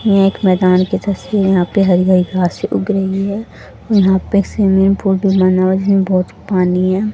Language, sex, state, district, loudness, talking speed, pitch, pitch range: Hindi, female, Haryana, Jhajjar, -14 LUFS, 185 wpm, 190 Hz, 185-200 Hz